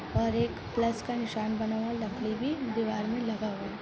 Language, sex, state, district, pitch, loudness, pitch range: Hindi, female, Jharkhand, Jamtara, 220 Hz, -32 LUFS, 210-230 Hz